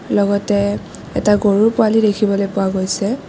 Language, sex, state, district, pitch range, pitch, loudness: Assamese, female, Assam, Kamrup Metropolitan, 200-215 Hz, 205 Hz, -16 LUFS